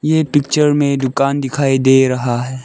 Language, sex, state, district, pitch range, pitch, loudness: Hindi, male, Arunachal Pradesh, Lower Dibang Valley, 130-145 Hz, 140 Hz, -14 LUFS